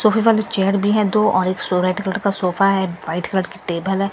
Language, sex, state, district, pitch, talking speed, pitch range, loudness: Hindi, female, Delhi, New Delhi, 195 Hz, 260 wpm, 185-200 Hz, -19 LUFS